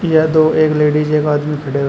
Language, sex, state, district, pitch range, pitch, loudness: Hindi, male, Uttar Pradesh, Shamli, 150-155 Hz, 150 Hz, -14 LUFS